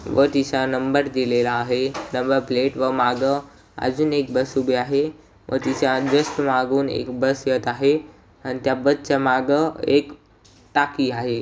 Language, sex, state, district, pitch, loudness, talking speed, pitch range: Marathi, male, Maharashtra, Aurangabad, 135 Hz, -21 LUFS, 150 wpm, 130-140 Hz